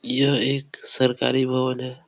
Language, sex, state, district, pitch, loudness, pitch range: Hindi, male, Uttar Pradesh, Etah, 130 Hz, -22 LUFS, 130-140 Hz